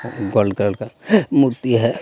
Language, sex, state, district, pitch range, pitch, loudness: Hindi, male, Jharkhand, Deoghar, 105-130 Hz, 115 Hz, -18 LUFS